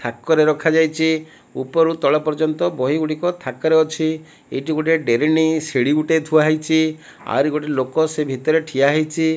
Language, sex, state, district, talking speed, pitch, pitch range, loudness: Odia, male, Odisha, Malkangiri, 135 wpm, 155 Hz, 145-160 Hz, -18 LUFS